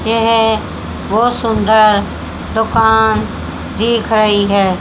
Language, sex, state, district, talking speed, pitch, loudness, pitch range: Hindi, female, Haryana, Jhajjar, 85 wpm, 220 Hz, -13 LUFS, 200-225 Hz